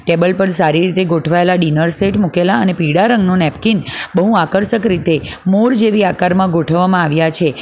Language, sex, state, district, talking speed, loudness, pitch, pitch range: Gujarati, female, Gujarat, Valsad, 165 wpm, -13 LUFS, 180 Hz, 165-195 Hz